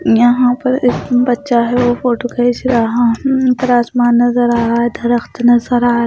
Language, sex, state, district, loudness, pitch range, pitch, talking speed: Hindi, female, Punjab, Pathankot, -13 LUFS, 240-245 Hz, 245 Hz, 210 wpm